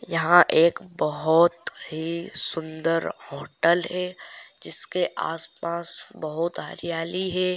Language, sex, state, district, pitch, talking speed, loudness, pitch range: Hindi, male, Andhra Pradesh, Guntur, 170 Hz, 110 wpm, -24 LUFS, 165-175 Hz